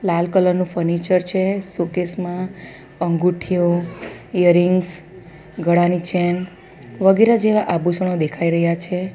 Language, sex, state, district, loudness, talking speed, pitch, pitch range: Gujarati, female, Gujarat, Valsad, -18 LUFS, 120 wpm, 180 Hz, 170-185 Hz